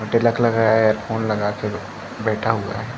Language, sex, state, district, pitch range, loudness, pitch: Hindi, male, Chhattisgarh, Rajnandgaon, 105-115 Hz, -20 LUFS, 110 Hz